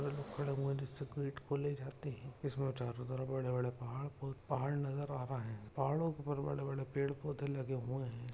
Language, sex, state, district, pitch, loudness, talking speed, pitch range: Hindi, male, Maharashtra, Aurangabad, 135 Hz, -40 LUFS, 195 wpm, 130-140 Hz